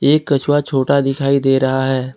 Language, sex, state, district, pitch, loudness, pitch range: Hindi, male, Jharkhand, Ranchi, 135 Hz, -15 LUFS, 135-140 Hz